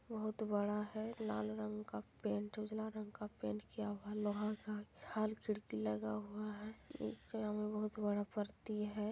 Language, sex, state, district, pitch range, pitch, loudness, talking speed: Hindi, female, Bihar, Supaul, 205-215 Hz, 210 Hz, -43 LUFS, 170 wpm